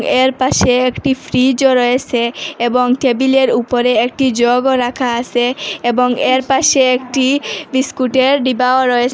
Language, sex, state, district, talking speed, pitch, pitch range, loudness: Bengali, female, Assam, Hailakandi, 125 wpm, 255 Hz, 245-265 Hz, -14 LUFS